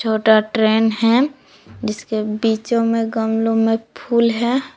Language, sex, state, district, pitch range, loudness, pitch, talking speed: Hindi, female, Jharkhand, Palamu, 220-235 Hz, -18 LUFS, 225 Hz, 125 wpm